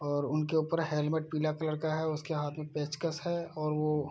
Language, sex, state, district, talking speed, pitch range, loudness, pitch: Hindi, male, Bihar, Araria, 235 wpm, 150-160 Hz, -33 LUFS, 155 Hz